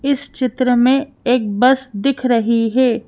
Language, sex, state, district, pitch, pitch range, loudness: Hindi, female, Madhya Pradesh, Bhopal, 255 Hz, 240-270 Hz, -16 LUFS